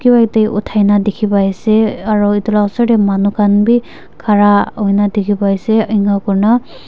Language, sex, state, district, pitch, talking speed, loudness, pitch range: Nagamese, female, Nagaland, Dimapur, 205 Hz, 190 wpm, -13 LUFS, 205-220 Hz